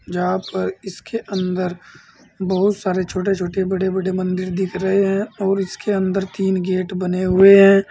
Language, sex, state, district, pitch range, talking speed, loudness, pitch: Hindi, male, Uttar Pradesh, Saharanpur, 185-195 Hz, 165 wpm, -18 LUFS, 190 Hz